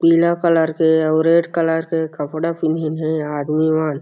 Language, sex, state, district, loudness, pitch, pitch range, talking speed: Chhattisgarhi, male, Chhattisgarh, Jashpur, -18 LUFS, 160 Hz, 155-165 Hz, 195 wpm